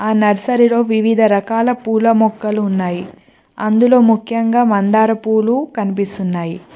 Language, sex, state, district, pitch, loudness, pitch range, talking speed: Telugu, female, Telangana, Mahabubabad, 220 Hz, -14 LUFS, 205-230 Hz, 105 wpm